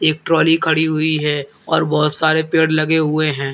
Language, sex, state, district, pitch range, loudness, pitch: Hindi, male, Uttar Pradesh, Lalitpur, 150-160 Hz, -16 LUFS, 155 Hz